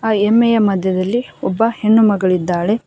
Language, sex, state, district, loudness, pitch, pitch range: Kannada, female, Karnataka, Koppal, -15 LUFS, 215 Hz, 185-225 Hz